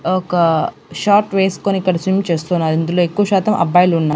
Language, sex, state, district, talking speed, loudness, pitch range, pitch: Telugu, female, Andhra Pradesh, Annamaya, 145 wpm, -16 LUFS, 170-195 Hz, 180 Hz